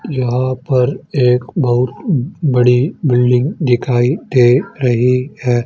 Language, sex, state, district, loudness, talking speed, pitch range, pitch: Hindi, male, Haryana, Charkhi Dadri, -14 LUFS, 105 wpm, 125-140 Hz, 125 Hz